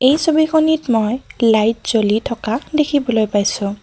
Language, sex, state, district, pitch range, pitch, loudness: Assamese, female, Assam, Kamrup Metropolitan, 220-295 Hz, 235 Hz, -16 LUFS